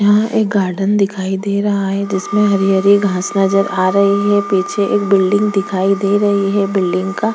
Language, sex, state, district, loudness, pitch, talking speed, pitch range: Hindi, female, Chhattisgarh, Korba, -15 LUFS, 200 Hz, 190 wpm, 195-205 Hz